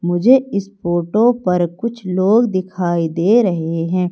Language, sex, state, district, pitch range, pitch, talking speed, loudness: Hindi, female, Madhya Pradesh, Umaria, 175-230 Hz, 185 Hz, 145 wpm, -16 LUFS